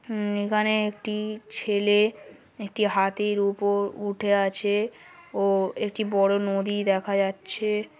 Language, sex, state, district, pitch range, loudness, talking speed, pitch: Bengali, female, West Bengal, Jhargram, 200-215 Hz, -25 LUFS, 110 wpm, 205 Hz